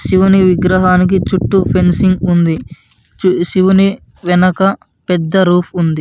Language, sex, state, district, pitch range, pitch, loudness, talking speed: Telugu, male, Andhra Pradesh, Anantapur, 175-190 Hz, 180 Hz, -12 LUFS, 100 wpm